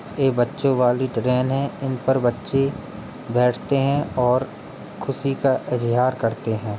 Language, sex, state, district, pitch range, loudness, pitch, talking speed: Hindi, male, Uttar Pradesh, Jalaun, 120-135 Hz, -21 LUFS, 130 Hz, 140 wpm